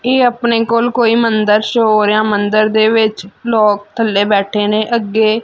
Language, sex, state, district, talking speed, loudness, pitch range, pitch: Punjabi, female, Punjab, Fazilka, 190 wpm, -13 LUFS, 210-230 Hz, 220 Hz